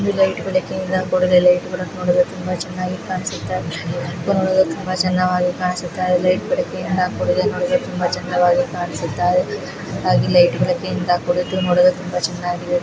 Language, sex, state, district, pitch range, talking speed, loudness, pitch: Kannada, female, Karnataka, Mysore, 175-185 Hz, 110 wpm, -19 LUFS, 180 Hz